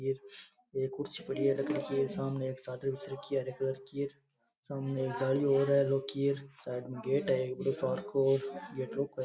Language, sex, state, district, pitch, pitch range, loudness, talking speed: Rajasthani, male, Rajasthan, Churu, 135 Hz, 130-140 Hz, -34 LUFS, 195 wpm